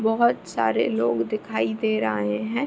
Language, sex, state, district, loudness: Hindi, female, Bihar, Begusarai, -24 LUFS